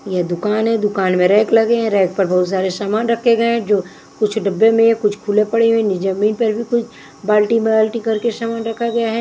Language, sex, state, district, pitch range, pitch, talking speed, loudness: Hindi, female, Bihar, Kaimur, 200-230 Hz, 220 Hz, 235 wpm, -16 LUFS